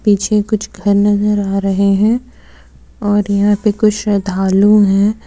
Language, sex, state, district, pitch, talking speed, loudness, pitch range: Hindi, female, Jharkhand, Deoghar, 205 Hz, 150 wpm, -14 LUFS, 200-210 Hz